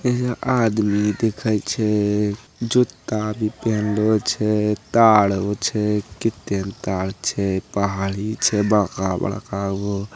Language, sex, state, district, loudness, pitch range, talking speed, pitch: Angika, male, Bihar, Begusarai, -21 LUFS, 100-110 Hz, 110 wpm, 105 Hz